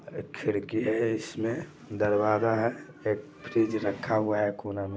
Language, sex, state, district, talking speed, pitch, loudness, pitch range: Hindi, male, Bihar, Vaishali, 170 wpm, 110 Hz, -29 LUFS, 105-115 Hz